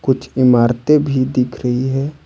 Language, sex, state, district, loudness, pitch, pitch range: Hindi, male, Jharkhand, Ranchi, -15 LUFS, 130 Hz, 125-135 Hz